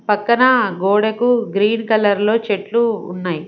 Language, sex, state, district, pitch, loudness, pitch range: Telugu, female, Andhra Pradesh, Sri Satya Sai, 215 Hz, -16 LUFS, 200-230 Hz